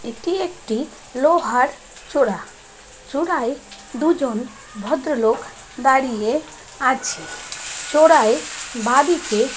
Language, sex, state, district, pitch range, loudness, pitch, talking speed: Bengali, female, West Bengal, Kolkata, 230-310 Hz, -20 LUFS, 265 Hz, 70 wpm